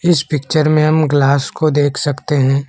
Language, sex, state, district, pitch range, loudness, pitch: Hindi, male, Assam, Kamrup Metropolitan, 140-155 Hz, -14 LUFS, 150 Hz